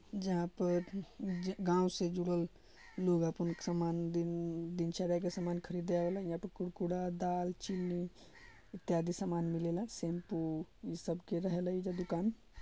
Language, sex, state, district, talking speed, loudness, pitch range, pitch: Bhojpuri, male, Bihar, Gopalganj, 145 wpm, -38 LUFS, 170-185 Hz, 175 Hz